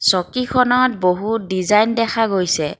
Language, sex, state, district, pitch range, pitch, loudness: Assamese, female, Assam, Kamrup Metropolitan, 185-230 Hz, 215 Hz, -17 LUFS